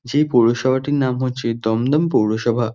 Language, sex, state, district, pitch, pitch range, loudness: Bengali, male, West Bengal, North 24 Parganas, 125 Hz, 115-135 Hz, -18 LUFS